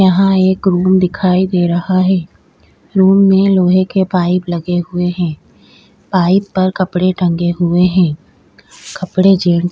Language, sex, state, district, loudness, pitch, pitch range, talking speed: Hindi, female, Goa, North and South Goa, -13 LUFS, 185 Hz, 175-190 Hz, 150 wpm